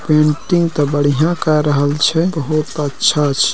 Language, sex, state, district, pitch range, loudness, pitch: Maithili, male, Bihar, Purnia, 145-160 Hz, -15 LUFS, 150 Hz